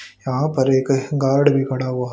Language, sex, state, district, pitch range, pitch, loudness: Hindi, male, Haryana, Rohtak, 130-140 Hz, 135 Hz, -19 LUFS